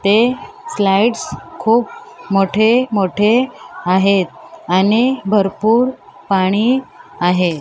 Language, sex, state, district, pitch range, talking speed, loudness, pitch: Marathi, female, Maharashtra, Mumbai Suburban, 195-235 Hz, 80 wpm, -15 LUFS, 205 Hz